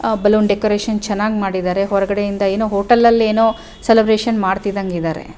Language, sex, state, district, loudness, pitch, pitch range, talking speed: Kannada, female, Karnataka, Bellary, -16 LUFS, 205 Hz, 195-220 Hz, 135 wpm